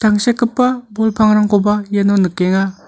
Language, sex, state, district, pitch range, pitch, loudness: Garo, male, Meghalaya, North Garo Hills, 200-220 Hz, 210 Hz, -14 LUFS